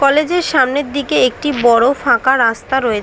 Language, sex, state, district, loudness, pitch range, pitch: Bengali, female, West Bengal, Dakshin Dinajpur, -14 LUFS, 240-285 Hz, 265 Hz